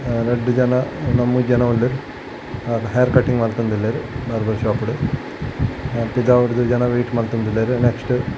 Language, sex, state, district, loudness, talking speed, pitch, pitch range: Tulu, male, Karnataka, Dakshina Kannada, -19 LUFS, 130 wpm, 120 Hz, 115-125 Hz